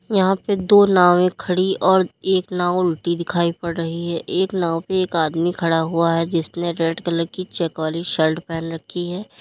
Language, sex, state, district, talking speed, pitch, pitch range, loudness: Hindi, female, Uttar Pradesh, Lalitpur, 200 wpm, 170 Hz, 165-185 Hz, -20 LUFS